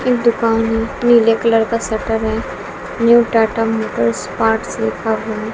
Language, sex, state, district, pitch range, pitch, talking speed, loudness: Hindi, female, Bihar, West Champaran, 220-230 Hz, 225 Hz, 160 wpm, -16 LUFS